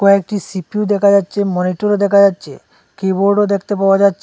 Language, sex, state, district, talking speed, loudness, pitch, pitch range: Bengali, male, Assam, Hailakandi, 155 wpm, -14 LUFS, 200 Hz, 190-205 Hz